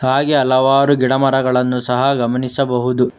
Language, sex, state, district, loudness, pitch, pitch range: Kannada, male, Karnataka, Bangalore, -15 LUFS, 130 Hz, 125-135 Hz